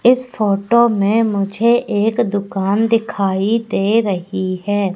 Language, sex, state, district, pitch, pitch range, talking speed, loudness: Hindi, female, Madhya Pradesh, Katni, 205 Hz, 195-230 Hz, 120 wpm, -16 LUFS